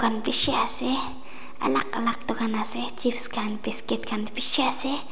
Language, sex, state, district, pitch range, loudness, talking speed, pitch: Nagamese, female, Nagaland, Dimapur, 220-250 Hz, -18 LUFS, 150 wpm, 235 Hz